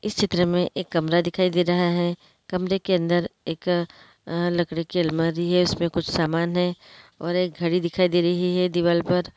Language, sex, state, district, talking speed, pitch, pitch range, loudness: Hindi, female, Uttarakhand, Uttarkashi, 190 wpm, 175 Hz, 170-180 Hz, -23 LUFS